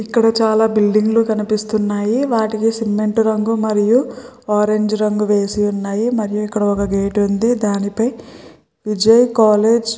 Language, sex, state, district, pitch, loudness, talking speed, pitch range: Telugu, female, Andhra Pradesh, Srikakulam, 215 Hz, -16 LUFS, 130 wpm, 210-225 Hz